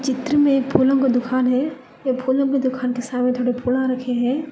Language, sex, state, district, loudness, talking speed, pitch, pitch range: Hindi, female, Telangana, Hyderabad, -20 LUFS, 225 wpm, 260 Hz, 250-270 Hz